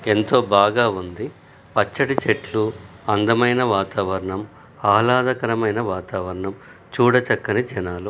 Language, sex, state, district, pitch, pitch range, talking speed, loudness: Telugu, male, Telangana, Nalgonda, 110 Hz, 95-120 Hz, 95 wpm, -20 LUFS